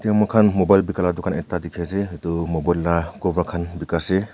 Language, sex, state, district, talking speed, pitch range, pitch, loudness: Nagamese, male, Nagaland, Kohima, 195 wpm, 85-100 Hz, 90 Hz, -21 LUFS